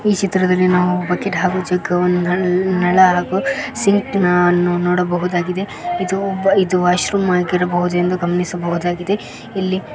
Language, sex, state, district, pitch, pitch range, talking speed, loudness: Kannada, female, Karnataka, Koppal, 180 Hz, 180-190 Hz, 105 wpm, -17 LUFS